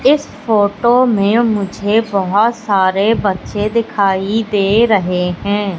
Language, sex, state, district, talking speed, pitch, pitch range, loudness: Hindi, female, Madhya Pradesh, Katni, 115 wpm, 205 Hz, 195-225 Hz, -14 LUFS